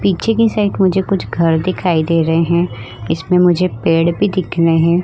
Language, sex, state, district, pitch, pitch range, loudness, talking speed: Hindi, female, Bihar, Vaishali, 175 Hz, 165-190 Hz, -15 LUFS, 215 wpm